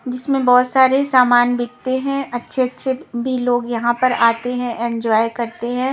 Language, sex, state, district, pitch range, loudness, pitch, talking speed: Hindi, female, Punjab, Kapurthala, 240-260 Hz, -17 LUFS, 250 Hz, 170 wpm